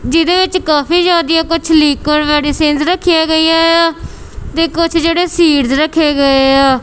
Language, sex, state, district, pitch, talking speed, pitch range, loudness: Punjabi, female, Punjab, Kapurthala, 325 Hz, 150 wpm, 295-335 Hz, -11 LUFS